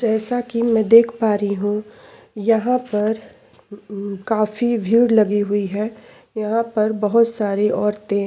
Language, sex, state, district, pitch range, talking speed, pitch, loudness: Hindi, female, Chhattisgarh, Sukma, 210-230 Hz, 145 wpm, 220 Hz, -19 LUFS